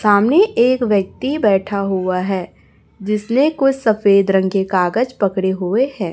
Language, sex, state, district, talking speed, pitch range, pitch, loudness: Hindi, female, Chhattisgarh, Raipur, 145 wpm, 190-240 Hz, 205 Hz, -16 LUFS